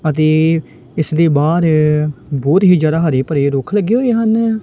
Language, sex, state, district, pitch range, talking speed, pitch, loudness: Punjabi, male, Punjab, Kapurthala, 150-185 Hz, 170 wpm, 155 Hz, -14 LUFS